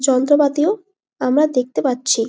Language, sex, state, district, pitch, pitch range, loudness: Bengali, female, West Bengal, Malda, 280 Hz, 255-305 Hz, -17 LUFS